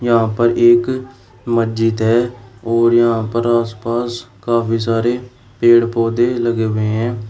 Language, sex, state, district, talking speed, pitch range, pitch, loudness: Hindi, male, Uttar Pradesh, Shamli, 130 wpm, 115-120 Hz, 115 Hz, -16 LUFS